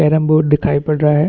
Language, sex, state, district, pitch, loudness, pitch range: Hindi, male, Chhattisgarh, Bastar, 150 Hz, -14 LUFS, 150-155 Hz